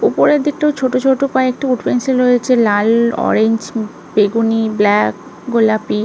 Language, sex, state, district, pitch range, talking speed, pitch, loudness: Bengali, female, West Bengal, Malda, 220-255 Hz, 130 wpm, 235 Hz, -14 LUFS